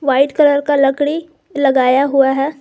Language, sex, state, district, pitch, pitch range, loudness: Hindi, female, Jharkhand, Garhwa, 280 Hz, 270-290 Hz, -14 LUFS